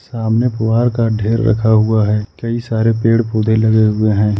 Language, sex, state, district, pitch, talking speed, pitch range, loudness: Hindi, male, Jharkhand, Ranchi, 110 Hz, 190 wpm, 110-115 Hz, -14 LUFS